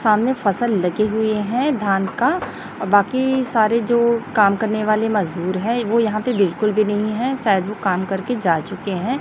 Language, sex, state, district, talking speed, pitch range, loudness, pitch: Hindi, female, Chhattisgarh, Raipur, 195 wpm, 200-235 Hz, -19 LUFS, 215 Hz